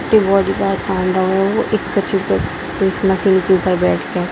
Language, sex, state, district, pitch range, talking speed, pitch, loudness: Hindi, female, Bihar, Darbhanga, 185-195 Hz, 210 wpm, 190 Hz, -16 LUFS